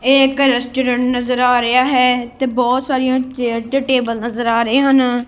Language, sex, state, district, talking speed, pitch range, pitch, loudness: Punjabi, female, Punjab, Kapurthala, 195 wpm, 245-265 Hz, 250 Hz, -15 LUFS